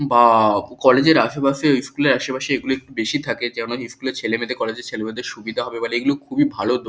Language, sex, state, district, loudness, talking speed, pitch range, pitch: Bengali, male, West Bengal, Kolkata, -20 LUFS, 215 wpm, 115-140 Hz, 125 Hz